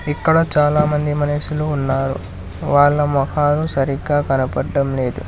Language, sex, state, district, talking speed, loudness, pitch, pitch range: Telugu, male, Telangana, Hyderabad, 100 wpm, -17 LUFS, 145 Hz, 135-150 Hz